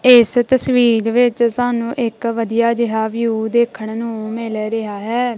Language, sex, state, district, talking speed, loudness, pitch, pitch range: Punjabi, female, Punjab, Kapurthala, 145 wpm, -16 LUFS, 235 Hz, 225-240 Hz